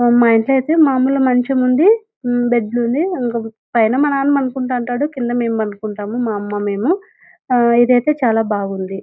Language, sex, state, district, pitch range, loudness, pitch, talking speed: Telugu, female, Andhra Pradesh, Anantapur, 225-270 Hz, -16 LUFS, 245 Hz, 140 wpm